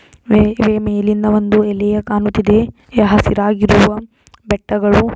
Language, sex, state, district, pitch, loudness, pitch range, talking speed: Kannada, female, Karnataka, Belgaum, 210 Hz, -14 LUFS, 210-215 Hz, 95 wpm